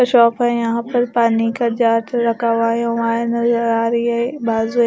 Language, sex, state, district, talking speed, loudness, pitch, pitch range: Hindi, female, Maharashtra, Gondia, 195 wpm, -17 LUFS, 235 Hz, 230-235 Hz